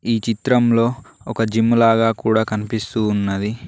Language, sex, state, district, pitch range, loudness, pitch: Telugu, male, Telangana, Mahabubabad, 110-115 Hz, -18 LUFS, 115 Hz